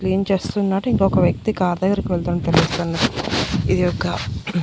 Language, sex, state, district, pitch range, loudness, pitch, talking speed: Telugu, female, Andhra Pradesh, Annamaya, 175-200 Hz, -20 LUFS, 190 Hz, 130 wpm